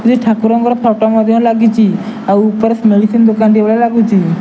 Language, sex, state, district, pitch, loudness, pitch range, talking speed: Odia, male, Odisha, Nuapada, 225 Hz, -11 LUFS, 215-230 Hz, 165 wpm